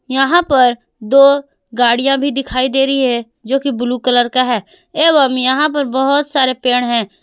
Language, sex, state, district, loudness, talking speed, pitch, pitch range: Hindi, female, Jharkhand, Garhwa, -13 LUFS, 180 wpm, 260 Hz, 245-275 Hz